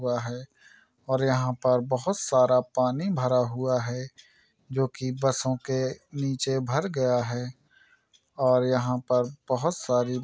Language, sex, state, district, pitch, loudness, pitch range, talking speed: Hindi, male, Bihar, Saran, 130 Hz, -26 LUFS, 125-135 Hz, 140 wpm